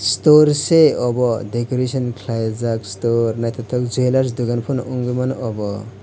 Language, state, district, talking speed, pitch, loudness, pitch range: Kokborok, Tripura, West Tripura, 120 wpm, 120 Hz, -18 LUFS, 115-130 Hz